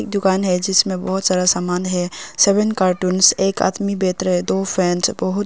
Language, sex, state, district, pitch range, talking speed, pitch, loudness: Hindi, female, Arunachal Pradesh, Longding, 180-195 Hz, 175 wpm, 185 Hz, -17 LUFS